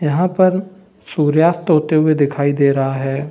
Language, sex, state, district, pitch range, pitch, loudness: Hindi, male, Bihar, Saran, 140-180 Hz, 155 Hz, -15 LUFS